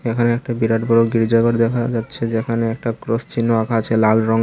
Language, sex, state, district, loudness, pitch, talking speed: Bengali, male, Tripura, Unakoti, -18 LUFS, 115 Hz, 215 wpm